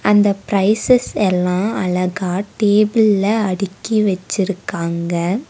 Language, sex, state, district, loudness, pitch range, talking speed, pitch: Tamil, female, Tamil Nadu, Nilgiris, -17 LUFS, 180-210 Hz, 75 wpm, 200 Hz